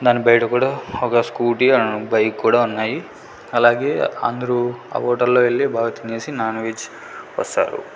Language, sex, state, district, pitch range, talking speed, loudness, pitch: Telugu, male, Andhra Pradesh, Sri Satya Sai, 115-125 Hz, 145 wpm, -19 LUFS, 120 Hz